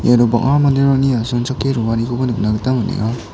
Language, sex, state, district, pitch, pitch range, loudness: Garo, male, Meghalaya, West Garo Hills, 120 Hz, 115-135 Hz, -16 LUFS